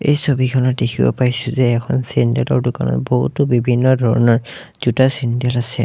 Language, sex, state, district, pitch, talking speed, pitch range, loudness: Assamese, male, Assam, Sonitpur, 125 Hz, 145 wpm, 120-130 Hz, -16 LUFS